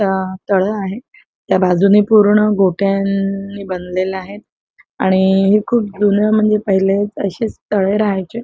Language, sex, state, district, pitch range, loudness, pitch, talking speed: Marathi, female, Maharashtra, Chandrapur, 190-210 Hz, -15 LUFS, 200 Hz, 135 wpm